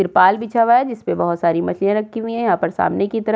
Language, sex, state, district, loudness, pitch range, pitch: Hindi, female, Uttar Pradesh, Jyotiba Phule Nagar, -18 LUFS, 190-230 Hz, 220 Hz